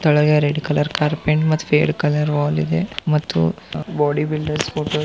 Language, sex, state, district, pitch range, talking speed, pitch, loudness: Kannada, male, Karnataka, Belgaum, 145-155 Hz, 180 wpm, 150 Hz, -19 LUFS